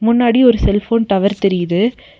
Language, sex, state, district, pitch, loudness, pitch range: Tamil, female, Tamil Nadu, Nilgiris, 215 Hz, -14 LUFS, 200-235 Hz